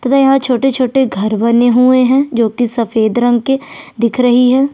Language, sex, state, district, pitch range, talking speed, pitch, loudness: Hindi, female, Chhattisgarh, Sukma, 235-265 Hz, 190 wpm, 250 Hz, -12 LUFS